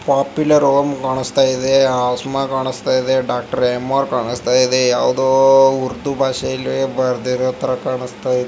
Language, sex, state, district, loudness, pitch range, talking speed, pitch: Kannada, male, Karnataka, Bijapur, -16 LUFS, 125-135 Hz, 105 wpm, 130 Hz